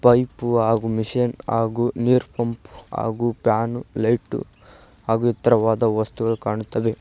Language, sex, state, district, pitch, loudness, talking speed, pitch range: Kannada, male, Karnataka, Koppal, 115 Hz, -22 LUFS, 110 wpm, 110-120 Hz